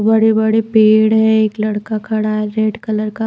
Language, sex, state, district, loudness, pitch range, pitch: Hindi, female, Maharashtra, Washim, -14 LUFS, 215-220 Hz, 220 Hz